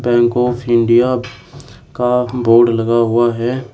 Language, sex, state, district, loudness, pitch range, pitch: Hindi, male, Uttar Pradesh, Shamli, -14 LUFS, 115-125 Hz, 120 Hz